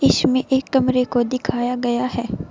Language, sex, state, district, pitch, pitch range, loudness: Hindi, female, Uttar Pradesh, Saharanpur, 250 Hz, 240-260 Hz, -20 LUFS